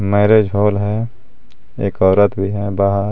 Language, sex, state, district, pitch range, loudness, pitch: Hindi, male, Jharkhand, Garhwa, 100-105 Hz, -15 LUFS, 100 Hz